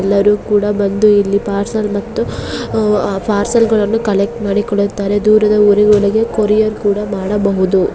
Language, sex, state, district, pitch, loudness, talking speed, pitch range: Kannada, female, Karnataka, Bellary, 205 Hz, -14 LUFS, 115 wpm, 200-215 Hz